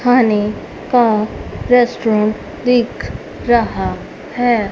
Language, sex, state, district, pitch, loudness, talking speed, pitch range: Hindi, female, Haryana, Rohtak, 235 Hz, -16 LUFS, 75 wpm, 215-245 Hz